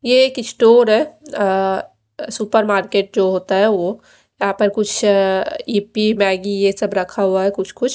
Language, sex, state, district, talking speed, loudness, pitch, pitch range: Hindi, female, Odisha, Malkangiri, 165 wpm, -17 LUFS, 205 Hz, 195-220 Hz